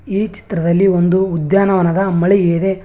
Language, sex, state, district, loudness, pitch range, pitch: Kannada, male, Karnataka, Bangalore, -14 LUFS, 175-195 Hz, 190 Hz